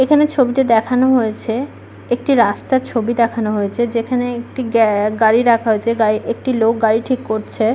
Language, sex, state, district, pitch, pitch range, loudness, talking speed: Bengali, female, West Bengal, Malda, 235 Hz, 220-250 Hz, -16 LUFS, 155 wpm